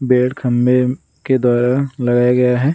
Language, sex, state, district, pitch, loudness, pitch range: Hindi, male, Bihar, Gaya, 125 Hz, -15 LUFS, 125-130 Hz